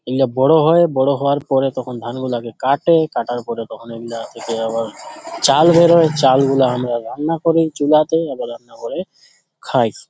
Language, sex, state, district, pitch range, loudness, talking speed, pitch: Bengali, male, West Bengal, Dakshin Dinajpur, 120-160 Hz, -16 LUFS, 135 wpm, 135 Hz